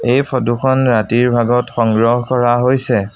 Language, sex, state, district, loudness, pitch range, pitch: Assamese, male, Assam, Sonitpur, -14 LUFS, 120-125 Hz, 120 Hz